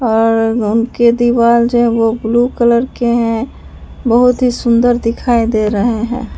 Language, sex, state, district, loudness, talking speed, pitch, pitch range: Hindi, female, Bihar, Katihar, -13 LUFS, 150 wpm, 235 Hz, 225-240 Hz